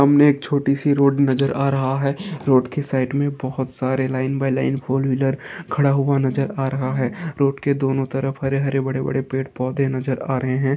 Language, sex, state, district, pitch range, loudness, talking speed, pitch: Hindi, male, Uttarakhand, Uttarkashi, 130-140 Hz, -21 LUFS, 225 wpm, 135 Hz